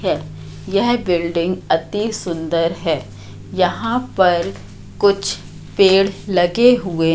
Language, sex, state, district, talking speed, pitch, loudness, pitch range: Hindi, female, Madhya Pradesh, Katni, 100 wpm, 175 Hz, -17 LUFS, 165-195 Hz